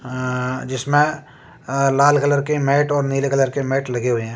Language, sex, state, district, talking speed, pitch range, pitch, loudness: Hindi, male, Uttar Pradesh, Jyotiba Phule Nagar, 205 wpm, 130-145 Hz, 135 Hz, -19 LUFS